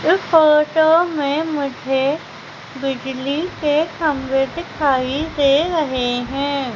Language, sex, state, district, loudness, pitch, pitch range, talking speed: Hindi, female, Madhya Pradesh, Umaria, -18 LUFS, 285 Hz, 270-315 Hz, 100 wpm